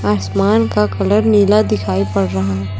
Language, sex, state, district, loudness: Hindi, male, Chhattisgarh, Raipur, -15 LUFS